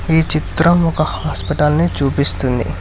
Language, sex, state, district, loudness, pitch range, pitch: Telugu, male, Telangana, Hyderabad, -15 LUFS, 125-160 Hz, 150 Hz